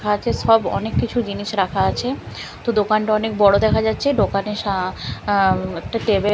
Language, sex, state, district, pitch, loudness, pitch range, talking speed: Bengali, female, Bihar, Katihar, 210 Hz, -19 LUFS, 195-220 Hz, 170 wpm